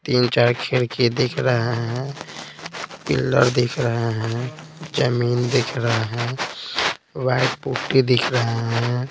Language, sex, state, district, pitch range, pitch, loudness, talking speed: Hindi, male, Bihar, Patna, 120-130 Hz, 125 Hz, -21 LUFS, 120 wpm